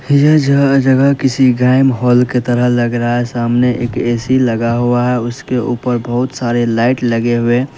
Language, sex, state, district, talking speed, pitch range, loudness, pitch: Hindi, male, Uttar Pradesh, Lalitpur, 185 wpm, 120-130 Hz, -13 LUFS, 125 Hz